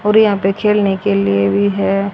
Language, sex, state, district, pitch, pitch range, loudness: Hindi, female, Haryana, Rohtak, 200 Hz, 195-210 Hz, -14 LUFS